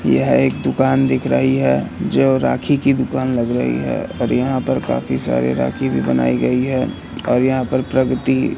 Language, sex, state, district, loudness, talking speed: Hindi, male, Madhya Pradesh, Katni, -17 LUFS, 195 wpm